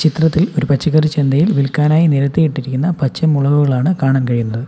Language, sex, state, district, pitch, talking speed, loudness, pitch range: Malayalam, male, Kerala, Kollam, 145 Hz, 115 wpm, -14 LUFS, 135-160 Hz